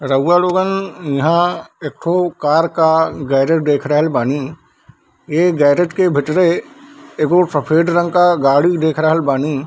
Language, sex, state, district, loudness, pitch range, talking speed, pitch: Hindi, male, Bihar, Darbhanga, -15 LUFS, 145-175 Hz, 150 wpm, 160 Hz